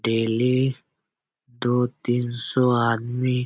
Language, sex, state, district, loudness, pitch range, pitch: Hindi, male, Bihar, Jahanabad, -23 LUFS, 120-125 Hz, 125 Hz